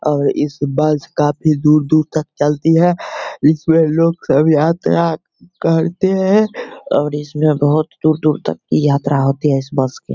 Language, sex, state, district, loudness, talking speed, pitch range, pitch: Hindi, male, Bihar, Begusarai, -15 LUFS, 155 wpm, 145-165 Hz, 155 Hz